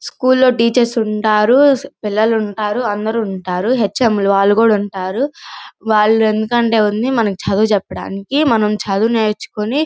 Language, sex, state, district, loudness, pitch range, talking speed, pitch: Telugu, female, Andhra Pradesh, Guntur, -15 LUFS, 210-235 Hz, 130 wpm, 220 Hz